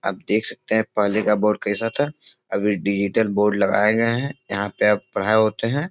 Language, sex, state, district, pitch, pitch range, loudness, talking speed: Hindi, male, Bihar, Supaul, 105 Hz, 105-115 Hz, -21 LUFS, 215 wpm